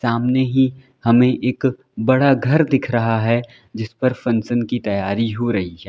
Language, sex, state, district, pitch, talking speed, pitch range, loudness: Hindi, male, Uttar Pradesh, Lalitpur, 120 Hz, 175 wpm, 115-130 Hz, -18 LUFS